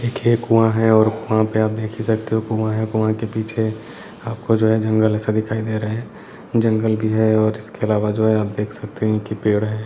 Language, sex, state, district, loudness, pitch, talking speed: Hindi, male, Maharashtra, Sindhudurg, -19 LUFS, 110 Hz, 245 wpm